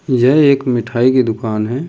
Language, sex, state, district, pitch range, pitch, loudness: Hindi, male, Delhi, New Delhi, 115-135 Hz, 125 Hz, -14 LUFS